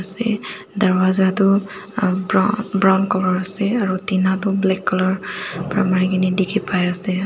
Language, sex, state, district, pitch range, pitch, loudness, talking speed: Nagamese, female, Nagaland, Dimapur, 185-205 Hz, 190 Hz, -19 LUFS, 165 wpm